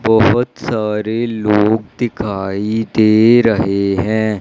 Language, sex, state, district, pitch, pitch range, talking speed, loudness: Hindi, male, Madhya Pradesh, Katni, 110 Hz, 105-115 Hz, 95 wpm, -15 LUFS